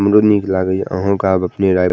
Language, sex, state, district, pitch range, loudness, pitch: Maithili, male, Bihar, Madhepura, 95-100 Hz, -15 LUFS, 95 Hz